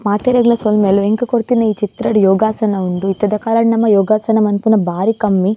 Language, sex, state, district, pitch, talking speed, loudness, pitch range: Tulu, female, Karnataka, Dakshina Kannada, 215 Hz, 170 wpm, -14 LUFS, 200-225 Hz